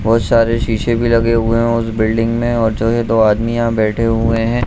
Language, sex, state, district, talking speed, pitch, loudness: Hindi, male, Bihar, Jahanabad, 245 wpm, 115 Hz, -15 LUFS